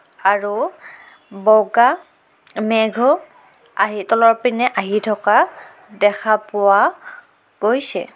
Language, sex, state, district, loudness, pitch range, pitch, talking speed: Assamese, female, Assam, Kamrup Metropolitan, -17 LUFS, 205-240 Hz, 215 Hz, 80 wpm